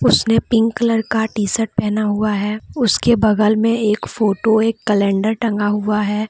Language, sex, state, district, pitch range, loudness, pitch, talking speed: Hindi, female, Jharkhand, Deoghar, 210-225 Hz, -17 LUFS, 215 Hz, 180 wpm